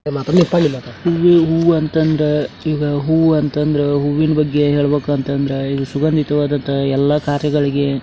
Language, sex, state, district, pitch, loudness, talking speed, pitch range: Kannada, male, Karnataka, Dharwad, 145 Hz, -16 LUFS, 120 wpm, 140-155 Hz